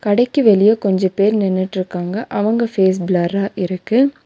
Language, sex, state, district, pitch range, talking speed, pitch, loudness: Tamil, female, Tamil Nadu, Nilgiris, 185-220 Hz, 125 wpm, 200 Hz, -16 LUFS